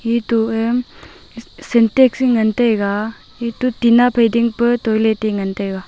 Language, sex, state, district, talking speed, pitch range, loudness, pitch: Wancho, female, Arunachal Pradesh, Longding, 145 wpm, 220-240 Hz, -16 LUFS, 230 Hz